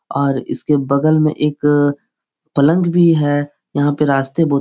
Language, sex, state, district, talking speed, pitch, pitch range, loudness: Hindi, male, Bihar, Jahanabad, 170 wpm, 145 Hz, 140-155 Hz, -16 LUFS